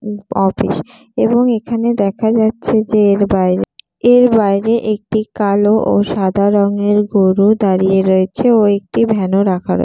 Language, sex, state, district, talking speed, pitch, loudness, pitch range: Bengali, female, West Bengal, Jalpaiguri, 145 wpm, 205 Hz, -14 LUFS, 195-220 Hz